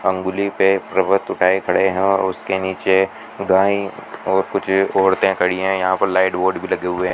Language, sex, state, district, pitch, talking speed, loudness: Hindi, male, Rajasthan, Bikaner, 95 Hz, 175 wpm, -18 LUFS